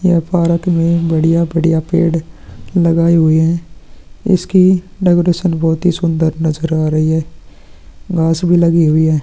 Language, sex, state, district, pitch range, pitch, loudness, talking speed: Hindi, male, Chhattisgarh, Korba, 160-175 Hz, 165 Hz, -13 LUFS, 145 wpm